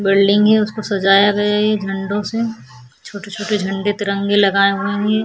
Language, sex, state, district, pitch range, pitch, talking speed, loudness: Hindi, female, Chhattisgarh, Sukma, 195-210 Hz, 205 Hz, 215 wpm, -16 LUFS